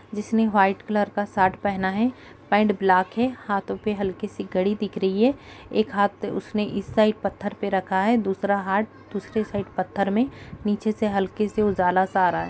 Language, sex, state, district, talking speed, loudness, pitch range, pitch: Hindi, female, Uttar Pradesh, Jalaun, 200 wpm, -24 LUFS, 195-215 Hz, 205 Hz